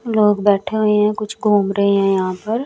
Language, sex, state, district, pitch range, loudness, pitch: Hindi, female, Chandigarh, Chandigarh, 200-215 Hz, -16 LUFS, 210 Hz